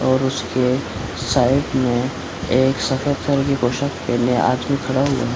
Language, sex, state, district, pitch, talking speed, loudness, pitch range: Hindi, male, Bihar, Supaul, 130 Hz, 155 wpm, -19 LUFS, 125-135 Hz